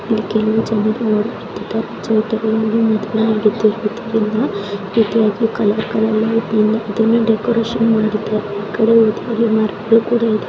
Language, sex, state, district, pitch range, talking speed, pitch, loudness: Kannada, female, Karnataka, Chamarajanagar, 215-225 Hz, 125 wpm, 220 Hz, -16 LUFS